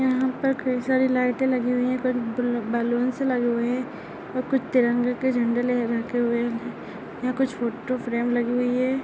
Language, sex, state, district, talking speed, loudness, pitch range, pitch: Hindi, female, Chhattisgarh, Raigarh, 185 wpm, -24 LUFS, 240-255 Hz, 250 Hz